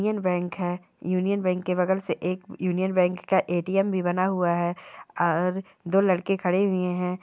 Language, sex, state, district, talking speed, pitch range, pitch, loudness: Hindi, female, Bihar, Darbhanga, 190 wpm, 180-190 Hz, 180 Hz, -25 LUFS